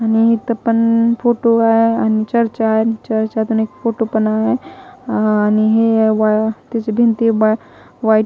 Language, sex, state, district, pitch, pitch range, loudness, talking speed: Marathi, female, Maharashtra, Mumbai Suburban, 225 Hz, 220-230 Hz, -15 LUFS, 145 wpm